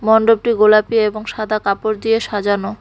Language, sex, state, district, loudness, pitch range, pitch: Bengali, female, West Bengal, Cooch Behar, -16 LUFS, 210-225 Hz, 215 Hz